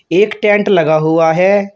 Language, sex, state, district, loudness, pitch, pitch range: Hindi, male, Uttar Pradesh, Shamli, -12 LUFS, 195 Hz, 160-205 Hz